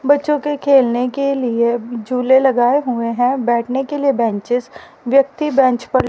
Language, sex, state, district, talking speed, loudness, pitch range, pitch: Hindi, female, Haryana, Rohtak, 160 wpm, -16 LUFS, 240-275 Hz, 255 Hz